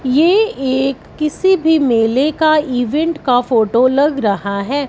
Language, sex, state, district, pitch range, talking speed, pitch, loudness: Hindi, female, Punjab, Fazilka, 245-310 Hz, 145 wpm, 275 Hz, -14 LUFS